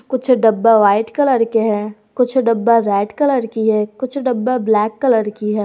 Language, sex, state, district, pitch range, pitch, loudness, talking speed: Hindi, female, Jharkhand, Garhwa, 215-255 Hz, 225 Hz, -15 LUFS, 190 wpm